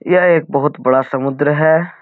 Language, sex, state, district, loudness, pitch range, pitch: Hindi, male, Bihar, Jahanabad, -14 LUFS, 135-165 Hz, 150 Hz